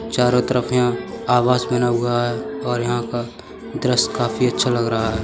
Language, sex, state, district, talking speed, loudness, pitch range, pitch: Hindi, male, Uttar Pradesh, Budaun, 185 wpm, -20 LUFS, 115-125 Hz, 120 Hz